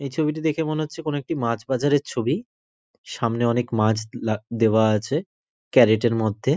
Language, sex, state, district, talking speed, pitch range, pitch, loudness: Bengali, male, West Bengal, North 24 Parganas, 175 wpm, 110-150 Hz, 120 Hz, -22 LUFS